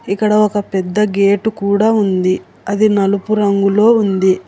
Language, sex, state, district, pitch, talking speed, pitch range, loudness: Telugu, female, Telangana, Hyderabad, 200 Hz, 135 wpm, 195-210 Hz, -14 LUFS